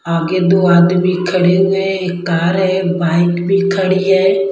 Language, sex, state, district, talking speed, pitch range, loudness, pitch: Hindi, female, Bihar, Kaimur, 185 wpm, 175-190 Hz, -13 LUFS, 185 Hz